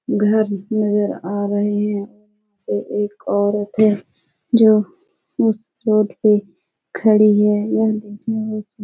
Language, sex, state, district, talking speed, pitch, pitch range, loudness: Hindi, male, Bihar, Supaul, 130 wpm, 210 Hz, 205-220 Hz, -18 LUFS